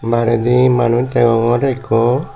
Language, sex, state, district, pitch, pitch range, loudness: Chakma, male, Tripura, Dhalai, 120 Hz, 115-125 Hz, -14 LUFS